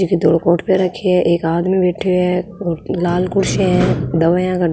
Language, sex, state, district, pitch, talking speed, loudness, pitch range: Rajasthani, female, Rajasthan, Nagaur, 180 Hz, 215 wpm, -16 LUFS, 170-185 Hz